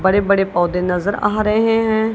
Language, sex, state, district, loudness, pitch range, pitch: Hindi, female, Punjab, Kapurthala, -17 LUFS, 185-220 Hz, 205 Hz